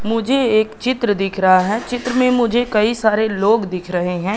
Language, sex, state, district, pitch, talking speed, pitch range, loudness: Hindi, male, Madhya Pradesh, Katni, 220 Hz, 205 wpm, 195-240 Hz, -17 LUFS